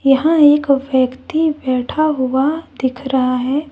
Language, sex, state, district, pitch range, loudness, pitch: Hindi, female, Jharkhand, Deoghar, 260-300 Hz, -16 LUFS, 270 Hz